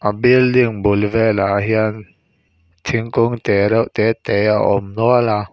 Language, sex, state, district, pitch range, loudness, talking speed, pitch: Mizo, male, Mizoram, Aizawl, 100-115 Hz, -16 LUFS, 150 wpm, 110 Hz